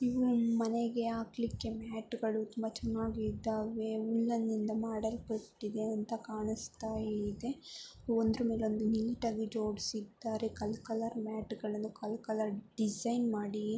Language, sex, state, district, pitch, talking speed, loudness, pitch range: Kannada, female, Karnataka, Mysore, 220 Hz, 115 wpm, -36 LUFS, 215-230 Hz